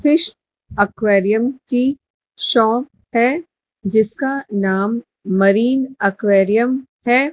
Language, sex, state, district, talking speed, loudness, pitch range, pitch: Hindi, male, Madhya Pradesh, Dhar, 80 wpm, -16 LUFS, 205-265 Hz, 235 Hz